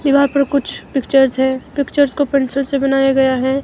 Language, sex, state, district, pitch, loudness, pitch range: Hindi, female, Himachal Pradesh, Shimla, 275 Hz, -16 LUFS, 265-280 Hz